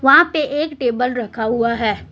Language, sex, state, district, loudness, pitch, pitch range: Hindi, female, Jharkhand, Deoghar, -18 LUFS, 245 Hz, 235-295 Hz